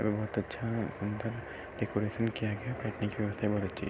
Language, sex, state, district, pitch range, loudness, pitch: Hindi, male, Uttar Pradesh, Gorakhpur, 105-115 Hz, -35 LUFS, 105 Hz